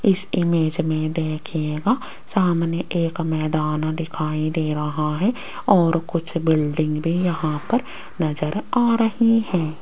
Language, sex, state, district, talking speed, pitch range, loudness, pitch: Hindi, female, Rajasthan, Jaipur, 130 wpm, 155-190 Hz, -22 LUFS, 165 Hz